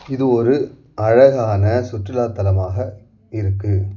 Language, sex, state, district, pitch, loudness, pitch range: Tamil, male, Tamil Nadu, Kanyakumari, 110 Hz, -17 LUFS, 100-120 Hz